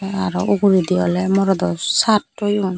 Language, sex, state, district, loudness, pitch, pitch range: Chakma, female, Tripura, Dhalai, -17 LUFS, 195 Hz, 185-200 Hz